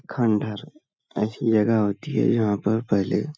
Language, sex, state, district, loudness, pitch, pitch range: Hindi, male, Uttar Pradesh, Hamirpur, -23 LUFS, 110 Hz, 105-115 Hz